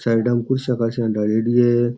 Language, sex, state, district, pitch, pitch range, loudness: Rajasthani, male, Rajasthan, Churu, 120 Hz, 115-120 Hz, -19 LUFS